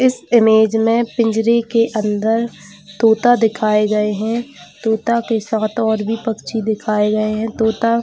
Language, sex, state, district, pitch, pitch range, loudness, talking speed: Hindi, female, Jharkhand, Jamtara, 225 Hz, 215-230 Hz, -16 LUFS, 155 wpm